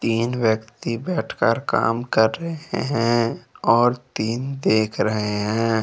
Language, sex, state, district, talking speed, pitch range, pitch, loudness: Hindi, male, Jharkhand, Deoghar, 125 wpm, 110-120 Hz, 115 Hz, -22 LUFS